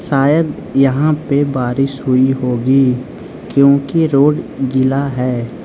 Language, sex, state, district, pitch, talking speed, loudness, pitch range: Hindi, male, Arunachal Pradesh, Lower Dibang Valley, 135 Hz, 105 wpm, -14 LUFS, 130-140 Hz